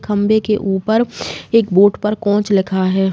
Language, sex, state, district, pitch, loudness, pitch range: Hindi, female, Uttar Pradesh, Jalaun, 205 Hz, -15 LUFS, 195-215 Hz